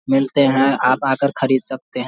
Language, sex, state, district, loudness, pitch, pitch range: Hindi, male, Bihar, Vaishali, -17 LUFS, 135 Hz, 130-135 Hz